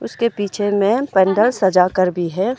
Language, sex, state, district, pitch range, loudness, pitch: Hindi, female, Arunachal Pradesh, Longding, 185-225 Hz, -17 LUFS, 200 Hz